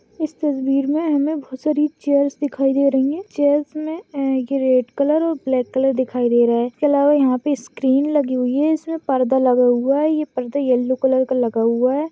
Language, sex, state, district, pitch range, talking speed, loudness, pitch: Hindi, female, Maharashtra, Pune, 255-295 Hz, 220 wpm, -19 LUFS, 275 Hz